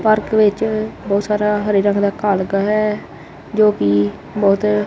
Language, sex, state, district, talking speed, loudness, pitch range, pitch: Punjabi, male, Punjab, Kapurthala, 160 wpm, -17 LUFS, 200-210 Hz, 210 Hz